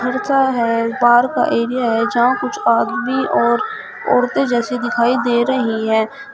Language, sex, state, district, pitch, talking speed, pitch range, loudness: Hindi, female, Uttar Pradesh, Shamli, 245 Hz, 125 wpm, 235-260 Hz, -16 LUFS